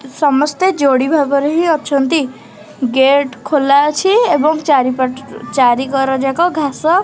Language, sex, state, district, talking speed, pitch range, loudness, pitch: Odia, female, Odisha, Khordha, 120 wpm, 265-305 Hz, -13 LUFS, 280 Hz